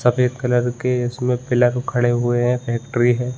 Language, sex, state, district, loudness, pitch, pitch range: Hindi, male, Chhattisgarh, Bilaspur, -19 LUFS, 125 Hz, 120-125 Hz